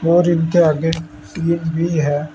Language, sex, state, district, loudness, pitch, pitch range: Hindi, male, Uttar Pradesh, Saharanpur, -17 LUFS, 165 Hz, 150-170 Hz